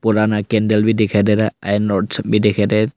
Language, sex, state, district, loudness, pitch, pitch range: Hindi, male, Arunachal Pradesh, Longding, -16 LUFS, 105 Hz, 105-110 Hz